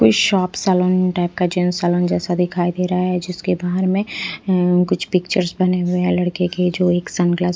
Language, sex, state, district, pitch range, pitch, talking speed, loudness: Hindi, female, Punjab, Pathankot, 175-185 Hz, 180 Hz, 205 wpm, -18 LUFS